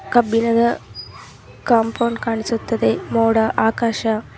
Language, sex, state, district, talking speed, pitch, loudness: Kannada, female, Karnataka, Raichur, 80 wpm, 225 Hz, -18 LUFS